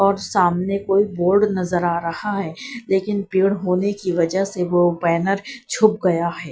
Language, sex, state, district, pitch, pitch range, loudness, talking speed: Hindi, female, Bihar, Katihar, 190 Hz, 175-200 Hz, -20 LUFS, 175 wpm